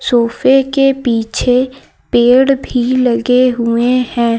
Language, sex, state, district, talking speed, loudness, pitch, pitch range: Hindi, female, Uttar Pradesh, Lucknow, 110 wpm, -12 LUFS, 250 Hz, 235-260 Hz